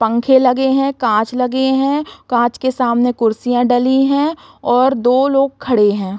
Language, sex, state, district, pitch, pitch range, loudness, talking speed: Hindi, female, Chhattisgarh, Raigarh, 255 Hz, 240-270 Hz, -15 LUFS, 165 wpm